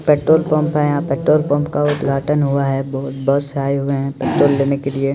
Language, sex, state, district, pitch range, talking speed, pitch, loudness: Maithili, male, Bihar, Supaul, 140-150 Hz, 220 wpm, 140 Hz, -17 LUFS